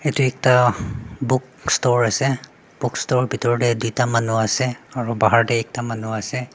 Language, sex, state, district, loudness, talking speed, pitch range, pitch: Nagamese, male, Nagaland, Dimapur, -20 LUFS, 165 wpm, 115-130 Hz, 120 Hz